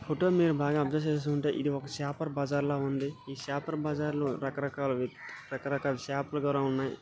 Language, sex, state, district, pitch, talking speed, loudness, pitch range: Telugu, male, Telangana, Nalgonda, 140 Hz, 180 wpm, -32 LUFS, 140-150 Hz